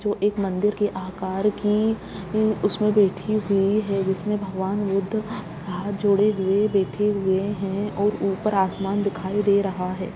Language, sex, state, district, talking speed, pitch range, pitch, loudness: Hindi, female, Bihar, Gaya, 155 wpm, 190-210 Hz, 200 Hz, -23 LUFS